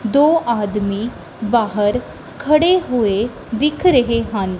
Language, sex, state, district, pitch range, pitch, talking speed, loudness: Punjabi, female, Punjab, Kapurthala, 210-285 Hz, 230 Hz, 105 wpm, -17 LUFS